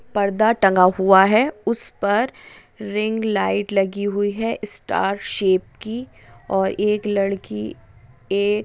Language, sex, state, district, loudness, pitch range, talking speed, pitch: Hindi, female, West Bengal, Dakshin Dinajpur, -20 LUFS, 195-215 Hz, 130 wpm, 205 Hz